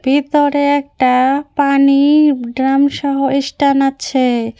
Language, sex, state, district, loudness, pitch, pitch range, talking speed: Bengali, female, West Bengal, Cooch Behar, -13 LUFS, 275 Hz, 265-285 Hz, 90 wpm